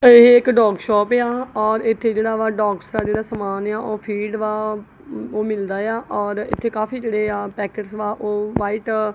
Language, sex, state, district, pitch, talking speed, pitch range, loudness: Punjabi, female, Punjab, Kapurthala, 215 Hz, 195 wpm, 210-225 Hz, -19 LUFS